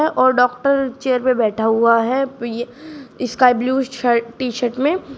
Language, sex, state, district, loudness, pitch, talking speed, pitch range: Hindi, female, Uttar Pradesh, Shamli, -18 LUFS, 255 Hz, 160 wpm, 240-270 Hz